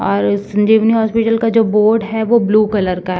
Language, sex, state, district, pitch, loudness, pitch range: Hindi, female, Uttar Pradesh, Ghazipur, 215 Hz, -14 LUFS, 200-225 Hz